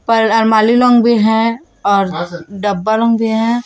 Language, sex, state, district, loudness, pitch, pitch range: Hindi, female, Chhattisgarh, Raipur, -13 LUFS, 225 Hz, 205-230 Hz